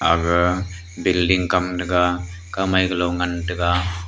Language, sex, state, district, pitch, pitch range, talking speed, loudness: Wancho, male, Arunachal Pradesh, Longding, 90 Hz, 85-90 Hz, 120 wpm, -20 LUFS